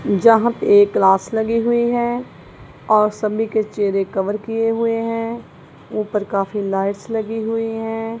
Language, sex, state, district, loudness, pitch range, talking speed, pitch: Hindi, female, Punjab, Kapurthala, -18 LUFS, 205-230 Hz, 155 wpm, 225 Hz